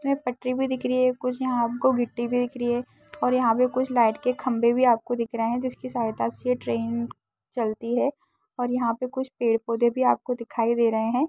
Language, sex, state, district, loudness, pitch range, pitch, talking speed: Hindi, female, Uttar Pradesh, Deoria, -25 LUFS, 235-255 Hz, 245 Hz, 225 wpm